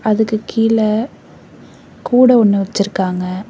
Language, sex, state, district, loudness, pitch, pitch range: Tamil, female, Tamil Nadu, Namakkal, -14 LUFS, 215 Hz, 195-225 Hz